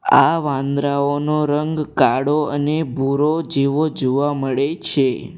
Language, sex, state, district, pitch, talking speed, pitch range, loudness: Gujarati, male, Gujarat, Valsad, 145 Hz, 110 wpm, 140-150 Hz, -18 LUFS